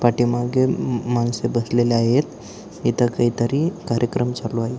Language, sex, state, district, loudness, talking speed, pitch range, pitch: Marathi, male, Maharashtra, Aurangabad, -21 LUFS, 125 wpm, 120-125 Hz, 120 Hz